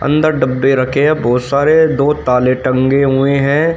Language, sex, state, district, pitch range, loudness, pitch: Hindi, male, Haryana, Rohtak, 130-150 Hz, -13 LUFS, 140 Hz